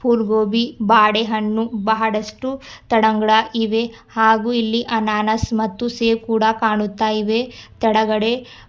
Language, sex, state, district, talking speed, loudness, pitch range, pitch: Kannada, female, Karnataka, Bidar, 105 wpm, -18 LUFS, 220-230 Hz, 225 Hz